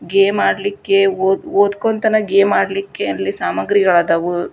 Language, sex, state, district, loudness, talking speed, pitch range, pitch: Kannada, female, Karnataka, Dharwad, -16 LUFS, 105 wpm, 175-200 Hz, 195 Hz